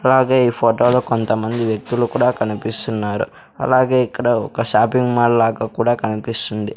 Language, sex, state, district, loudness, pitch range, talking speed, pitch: Telugu, male, Andhra Pradesh, Sri Satya Sai, -17 LUFS, 110-125 Hz, 135 wpm, 120 Hz